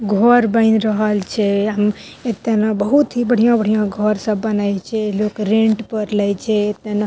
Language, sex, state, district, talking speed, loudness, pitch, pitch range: Maithili, female, Bihar, Madhepura, 180 wpm, -17 LUFS, 215 Hz, 210-220 Hz